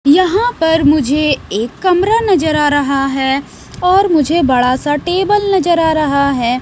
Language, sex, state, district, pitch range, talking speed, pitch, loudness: Hindi, female, Bihar, West Champaran, 280-365 Hz, 165 wpm, 305 Hz, -13 LUFS